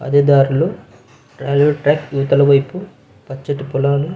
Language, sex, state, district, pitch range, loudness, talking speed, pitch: Telugu, male, Andhra Pradesh, Visakhapatnam, 135-145 Hz, -15 LUFS, 130 wpm, 140 Hz